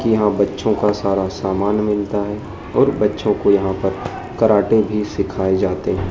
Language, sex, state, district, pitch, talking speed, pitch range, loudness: Hindi, male, Madhya Pradesh, Dhar, 105 Hz, 155 wpm, 95-105 Hz, -18 LUFS